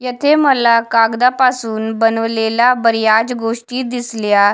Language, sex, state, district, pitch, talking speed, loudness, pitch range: Marathi, female, Maharashtra, Washim, 230 Hz, 95 wpm, -14 LUFS, 225-250 Hz